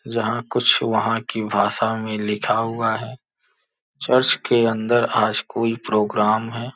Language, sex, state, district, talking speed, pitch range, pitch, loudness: Hindi, male, Uttar Pradesh, Gorakhpur, 140 wpm, 110-120 Hz, 115 Hz, -20 LUFS